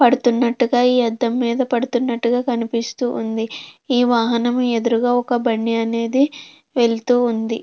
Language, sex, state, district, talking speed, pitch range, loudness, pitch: Telugu, female, Andhra Pradesh, Krishna, 110 wpm, 230-245 Hz, -19 LUFS, 240 Hz